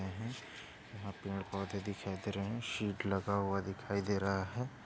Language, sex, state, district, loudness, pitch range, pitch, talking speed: Hindi, male, Maharashtra, Aurangabad, -39 LUFS, 100-105 Hz, 100 Hz, 185 wpm